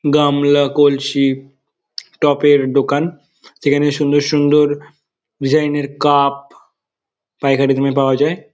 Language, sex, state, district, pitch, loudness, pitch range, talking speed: Bengali, male, West Bengal, Dakshin Dinajpur, 145 Hz, -15 LUFS, 140-145 Hz, 100 wpm